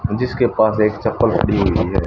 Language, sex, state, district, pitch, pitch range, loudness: Hindi, male, Haryana, Rohtak, 105 Hz, 100-110 Hz, -17 LUFS